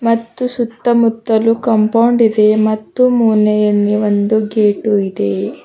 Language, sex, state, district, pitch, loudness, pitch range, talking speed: Kannada, female, Karnataka, Bidar, 220 Hz, -13 LUFS, 210-230 Hz, 105 wpm